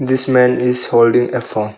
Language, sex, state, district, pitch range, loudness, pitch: English, male, Arunachal Pradesh, Longding, 120-125 Hz, -13 LUFS, 125 Hz